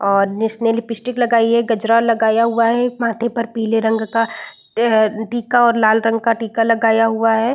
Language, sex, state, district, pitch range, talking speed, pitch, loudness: Hindi, female, Bihar, Saran, 225-235 Hz, 200 wpm, 230 Hz, -16 LUFS